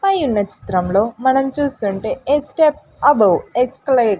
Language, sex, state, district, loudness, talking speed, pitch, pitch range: Telugu, female, Andhra Pradesh, Sri Satya Sai, -17 LUFS, 130 wpm, 260 Hz, 210-290 Hz